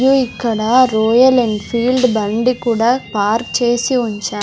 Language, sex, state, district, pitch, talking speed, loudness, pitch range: Telugu, female, Andhra Pradesh, Sri Satya Sai, 240 Hz, 120 wpm, -15 LUFS, 220-250 Hz